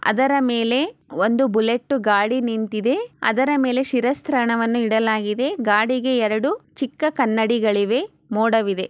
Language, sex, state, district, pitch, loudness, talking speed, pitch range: Kannada, female, Karnataka, Chamarajanagar, 235 Hz, -20 LUFS, 110 wpm, 220-265 Hz